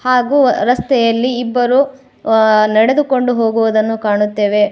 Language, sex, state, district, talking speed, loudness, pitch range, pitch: Kannada, female, Karnataka, Koppal, 90 wpm, -13 LUFS, 220-255 Hz, 240 Hz